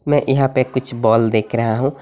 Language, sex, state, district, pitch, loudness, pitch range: Hindi, male, Assam, Hailakandi, 130 Hz, -17 LUFS, 115-135 Hz